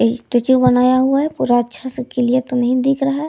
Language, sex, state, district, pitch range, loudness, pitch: Hindi, female, Bihar, Darbhanga, 245-270 Hz, -16 LUFS, 255 Hz